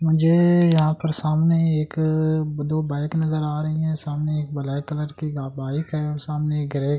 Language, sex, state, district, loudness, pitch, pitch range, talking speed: Hindi, male, Delhi, New Delhi, -22 LUFS, 155 Hz, 150-155 Hz, 180 wpm